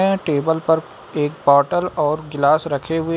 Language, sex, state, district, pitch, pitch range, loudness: Hindi, male, Uttar Pradesh, Lucknow, 160 Hz, 145-165 Hz, -18 LUFS